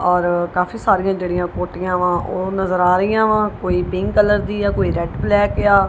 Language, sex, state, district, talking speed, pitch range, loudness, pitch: Punjabi, female, Punjab, Kapurthala, 205 wpm, 180-205 Hz, -18 LUFS, 185 Hz